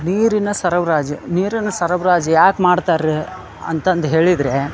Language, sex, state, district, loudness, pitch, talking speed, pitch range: Kannada, male, Karnataka, Dharwad, -16 LUFS, 175 Hz, 125 wpm, 160-185 Hz